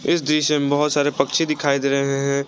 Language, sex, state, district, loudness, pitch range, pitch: Hindi, male, Jharkhand, Garhwa, -19 LUFS, 140-150 Hz, 145 Hz